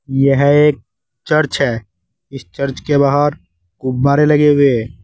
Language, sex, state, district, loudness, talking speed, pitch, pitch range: Hindi, male, Uttar Pradesh, Saharanpur, -14 LUFS, 145 wpm, 140 Hz, 125-145 Hz